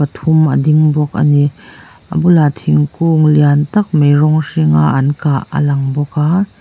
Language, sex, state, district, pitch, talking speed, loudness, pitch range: Mizo, female, Mizoram, Aizawl, 150 Hz, 170 wpm, -12 LUFS, 145-155 Hz